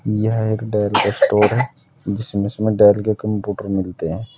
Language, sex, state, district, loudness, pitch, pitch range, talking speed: Hindi, male, Uttar Pradesh, Saharanpur, -18 LUFS, 105 Hz, 100-110 Hz, 165 wpm